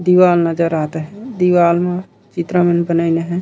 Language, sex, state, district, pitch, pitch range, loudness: Chhattisgarhi, male, Chhattisgarh, Raigarh, 175 Hz, 170-180 Hz, -15 LUFS